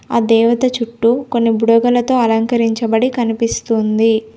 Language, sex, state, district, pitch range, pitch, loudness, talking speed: Telugu, female, Telangana, Komaram Bheem, 225-240 Hz, 230 Hz, -14 LUFS, 95 wpm